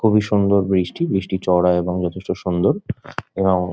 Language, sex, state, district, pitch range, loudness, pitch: Bengali, male, West Bengal, Jhargram, 90-100 Hz, -20 LUFS, 95 Hz